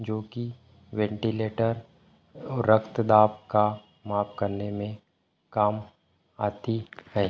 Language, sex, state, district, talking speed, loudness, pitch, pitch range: Hindi, male, Chhattisgarh, Bilaspur, 115 wpm, -27 LUFS, 110 Hz, 105-115 Hz